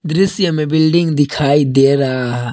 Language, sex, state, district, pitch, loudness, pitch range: Hindi, male, Jharkhand, Palamu, 150 Hz, -14 LUFS, 135-160 Hz